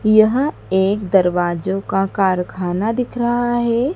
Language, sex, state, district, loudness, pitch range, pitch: Hindi, female, Madhya Pradesh, Dhar, -18 LUFS, 190-240 Hz, 200 Hz